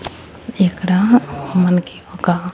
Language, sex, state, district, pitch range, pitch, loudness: Telugu, female, Andhra Pradesh, Annamaya, 175-190 Hz, 180 Hz, -16 LUFS